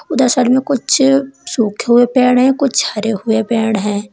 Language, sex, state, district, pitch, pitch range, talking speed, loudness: Hindi, female, Uttar Pradesh, Lalitpur, 250 Hz, 225-270 Hz, 190 wpm, -14 LUFS